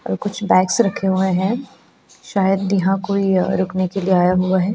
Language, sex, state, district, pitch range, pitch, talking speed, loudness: Hindi, female, Goa, North and South Goa, 185-200 Hz, 190 Hz, 190 wpm, -18 LUFS